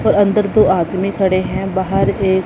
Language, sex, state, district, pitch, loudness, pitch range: Hindi, female, Punjab, Kapurthala, 190 Hz, -15 LUFS, 190-200 Hz